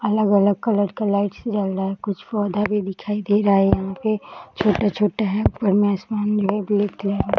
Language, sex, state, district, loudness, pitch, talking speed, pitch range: Hindi, female, Uttar Pradesh, Gorakhpur, -21 LUFS, 205 Hz, 185 wpm, 200-210 Hz